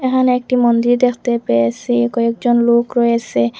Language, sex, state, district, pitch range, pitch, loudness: Bengali, female, Assam, Hailakandi, 235-250 Hz, 240 Hz, -15 LUFS